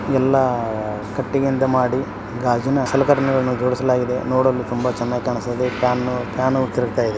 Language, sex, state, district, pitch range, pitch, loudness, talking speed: Kannada, male, Karnataka, Belgaum, 120-130 Hz, 125 Hz, -20 LUFS, 125 wpm